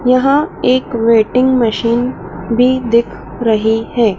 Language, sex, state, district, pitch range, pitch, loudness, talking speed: Hindi, female, Madhya Pradesh, Dhar, 225-255 Hz, 235 Hz, -13 LUFS, 115 wpm